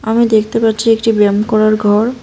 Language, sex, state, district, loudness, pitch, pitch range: Bengali, female, West Bengal, Cooch Behar, -12 LUFS, 220 Hz, 215-225 Hz